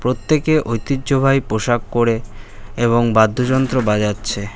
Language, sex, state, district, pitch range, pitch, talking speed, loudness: Bengali, male, West Bengal, Cooch Behar, 110-130 Hz, 120 Hz, 90 wpm, -17 LUFS